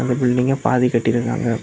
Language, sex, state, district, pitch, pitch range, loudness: Tamil, male, Tamil Nadu, Kanyakumari, 125 Hz, 120-125 Hz, -18 LUFS